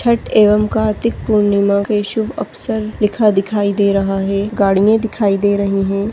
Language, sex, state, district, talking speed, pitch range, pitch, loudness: Hindi, female, Chhattisgarh, Rajnandgaon, 165 wpm, 200-215 Hz, 205 Hz, -15 LUFS